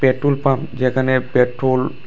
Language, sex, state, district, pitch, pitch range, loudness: Bengali, male, Tripura, West Tripura, 130 Hz, 130-135 Hz, -18 LUFS